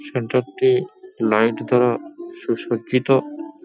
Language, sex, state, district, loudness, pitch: Bengali, male, West Bengal, Paschim Medinipur, -20 LUFS, 145 Hz